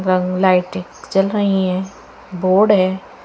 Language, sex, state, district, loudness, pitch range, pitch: Hindi, female, Haryana, Charkhi Dadri, -16 LUFS, 185-195 Hz, 190 Hz